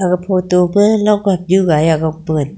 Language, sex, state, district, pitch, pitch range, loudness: Wancho, female, Arunachal Pradesh, Longding, 180 Hz, 160-195 Hz, -13 LUFS